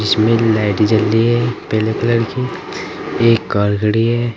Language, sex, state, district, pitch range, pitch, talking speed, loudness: Hindi, male, Uttar Pradesh, Saharanpur, 105-115 Hz, 110 Hz, 165 wpm, -16 LUFS